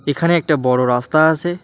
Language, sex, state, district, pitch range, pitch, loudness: Bengali, male, West Bengal, Alipurduar, 125-170 Hz, 155 Hz, -16 LUFS